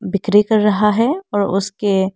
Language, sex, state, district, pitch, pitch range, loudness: Hindi, female, Arunachal Pradesh, Lower Dibang Valley, 205 Hz, 200-210 Hz, -16 LUFS